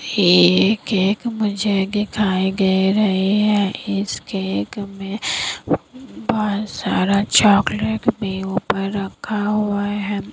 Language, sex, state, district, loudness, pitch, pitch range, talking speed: Hindi, female, Bihar, Kishanganj, -19 LUFS, 205 Hz, 195-210 Hz, 105 wpm